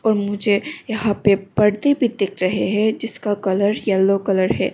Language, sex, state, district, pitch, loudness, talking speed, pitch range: Hindi, female, Arunachal Pradesh, Longding, 205 Hz, -19 LUFS, 165 wpm, 195-215 Hz